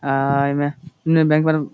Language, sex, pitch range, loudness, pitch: Maithili, male, 140-160 Hz, -19 LUFS, 145 Hz